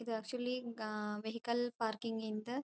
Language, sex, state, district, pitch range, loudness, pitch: Kannada, female, Karnataka, Dharwad, 220-240 Hz, -40 LUFS, 225 Hz